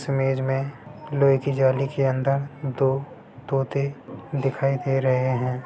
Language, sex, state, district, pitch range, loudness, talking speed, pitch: Hindi, male, Bihar, Sitamarhi, 135-140 Hz, -24 LUFS, 150 wpm, 135 Hz